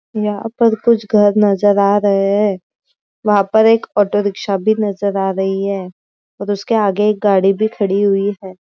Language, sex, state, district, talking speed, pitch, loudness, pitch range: Hindi, female, Maharashtra, Aurangabad, 190 wpm, 205 Hz, -15 LUFS, 195-215 Hz